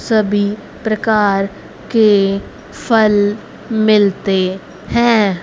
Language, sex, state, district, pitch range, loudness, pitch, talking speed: Hindi, female, Haryana, Rohtak, 200-220 Hz, -15 LUFS, 210 Hz, 65 wpm